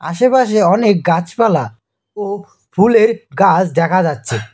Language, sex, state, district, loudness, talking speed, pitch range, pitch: Bengali, male, West Bengal, Cooch Behar, -14 LUFS, 105 wpm, 145-210 Hz, 185 Hz